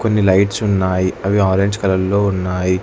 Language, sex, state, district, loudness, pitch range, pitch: Telugu, male, Telangana, Hyderabad, -16 LUFS, 95-100 Hz, 95 Hz